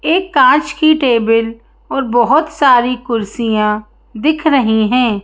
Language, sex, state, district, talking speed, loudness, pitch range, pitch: Hindi, female, Madhya Pradesh, Bhopal, 125 wpm, -13 LUFS, 225-290 Hz, 240 Hz